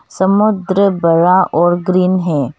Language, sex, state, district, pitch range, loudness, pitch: Hindi, female, Arunachal Pradesh, Longding, 170-190 Hz, -13 LUFS, 185 Hz